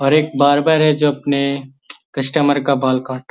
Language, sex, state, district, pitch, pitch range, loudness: Magahi, male, Bihar, Gaya, 140 Hz, 135-150 Hz, -16 LUFS